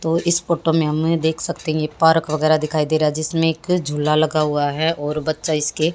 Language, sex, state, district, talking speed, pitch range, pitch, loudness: Hindi, female, Haryana, Jhajjar, 240 wpm, 155-165 Hz, 155 Hz, -19 LUFS